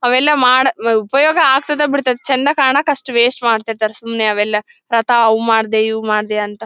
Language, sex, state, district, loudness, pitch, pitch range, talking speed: Kannada, female, Karnataka, Bellary, -14 LUFS, 235 Hz, 220-265 Hz, 170 wpm